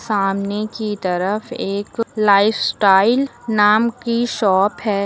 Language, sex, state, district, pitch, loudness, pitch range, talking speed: Hindi, female, Uttar Pradesh, Lucknow, 210 Hz, -17 LUFS, 200-230 Hz, 105 wpm